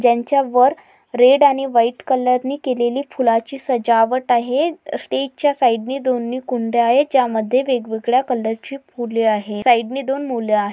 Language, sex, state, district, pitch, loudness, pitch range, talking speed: Marathi, female, Maharashtra, Pune, 250 Hz, -18 LUFS, 235-270 Hz, 170 wpm